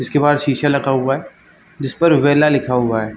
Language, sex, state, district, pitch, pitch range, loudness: Hindi, male, Chhattisgarh, Balrampur, 140 Hz, 130-145 Hz, -16 LUFS